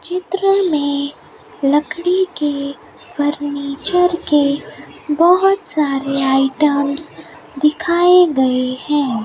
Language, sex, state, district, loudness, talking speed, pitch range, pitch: Hindi, female, Rajasthan, Bikaner, -16 LUFS, 80 wpm, 280-355 Hz, 295 Hz